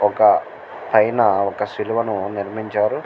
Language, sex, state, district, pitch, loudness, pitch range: Telugu, male, Andhra Pradesh, Guntur, 105 Hz, -19 LUFS, 100-110 Hz